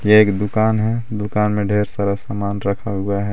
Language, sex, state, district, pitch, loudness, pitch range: Hindi, male, Jharkhand, Garhwa, 105 Hz, -19 LUFS, 100-105 Hz